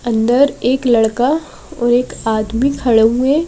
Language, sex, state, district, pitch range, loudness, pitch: Hindi, female, Madhya Pradesh, Bhopal, 230-275 Hz, -15 LUFS, 245 Hz